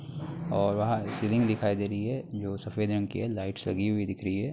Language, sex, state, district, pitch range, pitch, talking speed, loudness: Hindi, male, Bihar, Begusarai, 100-115 Hz, 105 Hz, 240 wpm, -30 LUFS